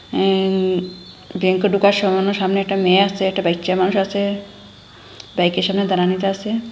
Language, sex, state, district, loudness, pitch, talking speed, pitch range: Bengali, female, Assam, Hailakandi, -18 LUFS, 190 Hz, 145 wpm, 180-200 Hz